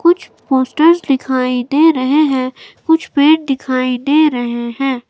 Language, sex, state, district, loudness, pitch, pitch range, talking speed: Hindi, female, Himachal Pradesh, Shimla, -14 LUFS, 270 Hz, 255-310 Hz, 140 wpm